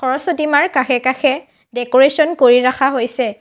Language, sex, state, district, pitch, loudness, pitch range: Assamese, female, Assam, Sonitpur, 265 Hz, -14 LUFS, 250-290 Hz